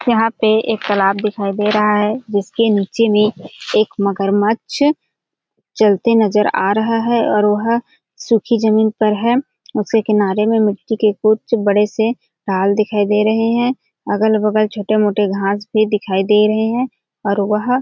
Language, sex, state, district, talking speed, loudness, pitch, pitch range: Hindi, female, Chhattisgarh, Balrampur, 160 wpm, -16 LUFS, 215 Hz, 205-225 Hz